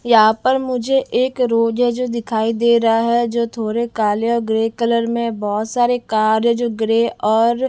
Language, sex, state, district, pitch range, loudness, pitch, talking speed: Hindi, female, Delhi, New Delhi, 225-240 Hz, -17 LUFS, 235 Hz, 195 wpm